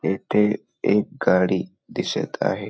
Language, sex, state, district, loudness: Marathi, male, Maharashtra, Pune, -22 LUFS